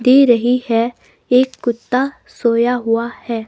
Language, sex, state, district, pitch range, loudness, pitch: Hindi, female, Himachal Pradesh, Shimla, 230-255 Hz, -16 LUFS, 240 Hz